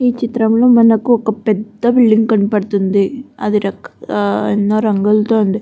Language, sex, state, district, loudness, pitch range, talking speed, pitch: Telugu, female, Andhra Pradesh, Guntur, -14 LUFS, 200-230 Hz, 150 wpm, 215 Hz